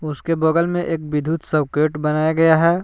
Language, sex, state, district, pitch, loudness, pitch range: Hindi, male, Jharkhand, Palamu, 160 Hz, -19 LUFS, 150-165 Hz